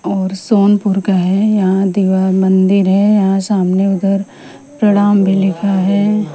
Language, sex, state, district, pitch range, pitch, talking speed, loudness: Hindi, female, Punjab, Pathankot, 190-205 Hz, 195 Hz, 140 wpm, -13 LUFS